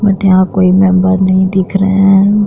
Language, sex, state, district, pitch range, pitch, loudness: Hindi, female, Bihar, Vaishali, 185-195 Hz, 190 Hz, -10 LUFS